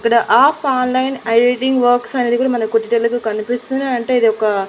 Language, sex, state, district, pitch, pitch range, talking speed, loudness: Telugu, female, Andhra Pradesh, Annamaya, 245 Hz, 230-255 Hz, 180 wpm, -15 LUFS